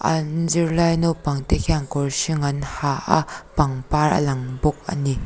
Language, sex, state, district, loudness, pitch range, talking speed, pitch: Mizo, female, Mizoram, Aizawl, -21 LUFS, 140-165 Hz, 170 wpm, 150 Hz